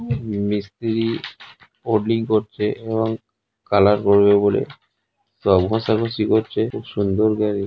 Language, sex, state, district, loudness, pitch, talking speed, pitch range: Bengali, male, West Bengal, North 24 Parganas, -20 LUFS, 110 Hz, 110 wpm, 100-110 Hz